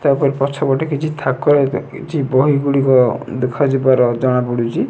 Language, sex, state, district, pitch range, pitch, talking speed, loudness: Odia, male, Odisha, Nuapada, 130-145 Hz, 135 Hz, 145 wpm, -16 LUFS